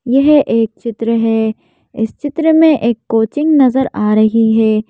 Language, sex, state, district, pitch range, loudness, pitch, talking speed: Hindi, female, Madhya Pradesh, Bhopal, 220-275 Hz, -13 LUFS, 230 Hz, 160 wpm